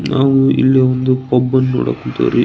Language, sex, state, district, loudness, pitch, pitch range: Kannada, male, Karnataka, Belgaum, -14 LUFS, 130 Hz, 130-135 Hz